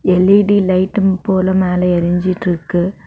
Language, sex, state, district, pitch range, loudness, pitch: Tamil, female, Tamil Nadu, Kanyakumari, 180-190 Hz, -14 LUFS, 185 Hz